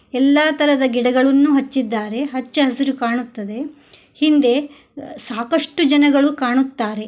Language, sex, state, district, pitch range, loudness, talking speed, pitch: Kannada, female, Karnataka, Koppal, 245-290 Hz, -16 LUFS, 85 wpm, 270 Hz